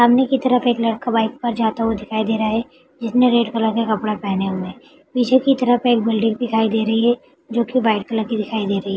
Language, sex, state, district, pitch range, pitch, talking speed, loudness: Hindi, female, Bihar, Araria, 220-245 Hz, 225 Hz, 255 wpm, -19 LUFS